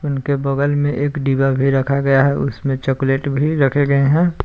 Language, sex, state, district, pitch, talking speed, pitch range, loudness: Hindi, male, Jharkhand, Palamu, 140 Hz, 205 wpm, 135-145 Hz, -17 LUFS